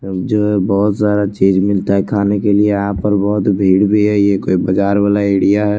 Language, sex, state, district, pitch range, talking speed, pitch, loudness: Hindi, male, Chandigarh, Chandigarh, 100-105 Hz, 230 wpm, 100 Hz, -14 LUFS